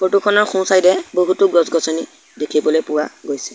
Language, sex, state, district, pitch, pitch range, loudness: Assamese, male, Assam, Sonitpur, 175 Hz, 155-190 Hz, -16 LUFS